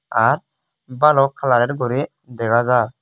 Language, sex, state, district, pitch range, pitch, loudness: Chakma, male, Tripura, West Tripura, 120-135 Hz, 125 Hz, -18 LUFS